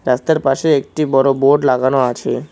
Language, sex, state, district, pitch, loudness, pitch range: Bengali, male, West Bengal, Cooch Behar, 135 Hz, -15 LUFS, 130-145 Hz